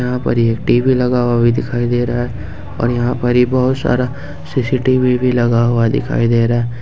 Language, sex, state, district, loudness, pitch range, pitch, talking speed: Hindi, male, Jharkhand, Ranchi, -15 LUFS, 120-125 Hz, 120 Hz, 220 wpm